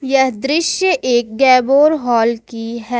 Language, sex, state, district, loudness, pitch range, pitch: Hindi, female, Jharkhand, Ranchi, -14 LUFS, 235-275 Hz, 255 Hz